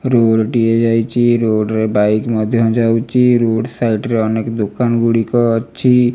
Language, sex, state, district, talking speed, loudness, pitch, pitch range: Odia, male, Odisha, Malkangiri, 145 wpm, -14 LUFS, 115 Hz, 110-120 Hz